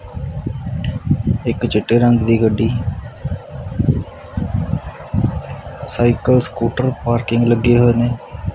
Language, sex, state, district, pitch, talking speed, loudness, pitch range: Punjabi, male, Punjab, Kapurthala, 120 Hz, 75 wpm, -18 LUFS, 115-120 Hz